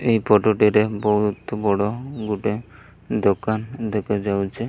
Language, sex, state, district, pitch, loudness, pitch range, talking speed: Odia, male, Odisha, Malkangiri, 105 Hz, -21 LUFS, 105-110 Hz, 115 wpm